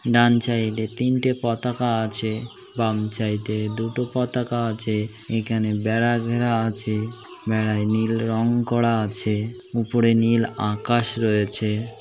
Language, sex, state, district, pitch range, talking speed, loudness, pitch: Bengali, male, West Bengal, North 24 Parganas, 110-120 Hz, 130 wpm, -23 LUFS, 115 Hz